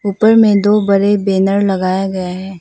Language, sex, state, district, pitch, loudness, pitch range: Hindi, female, Arunachal Pradesh, Papum Pare, 195 Hz, -13 LUFS, 190-205 Hz